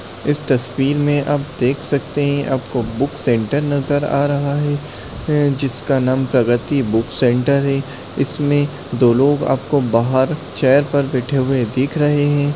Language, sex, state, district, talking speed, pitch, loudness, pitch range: Hindi, male, Uttar Pradesh, Varanasi, 155 wpm, 140 Hz, -17 LUFS, 130-145 Hz